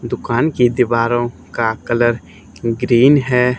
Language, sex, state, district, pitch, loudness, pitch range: Hindi, male, Haryana, Charkhi Dadri, 120 Hz, -16 LUFS, 115-125 Hz